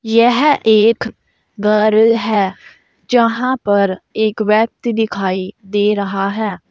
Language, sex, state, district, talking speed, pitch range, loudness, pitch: Hindi, female, Uttar Pradesh, Saharanpur, 105 wpm, 200-230 Hz, -15 LUFS, 215 Hz